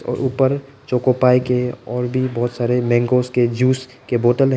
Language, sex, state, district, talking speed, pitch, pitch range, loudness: Hindi, male, Arunachal Pradesh, Papum Pare, 185 wpm, 125 Hz, 120-130 Hz, -18 LUFS